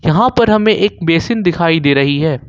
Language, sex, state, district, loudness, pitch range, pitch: Hindi, male, Jharkhand, Ranchi, -12 LUFS, 155-215 Hz, 170 Hz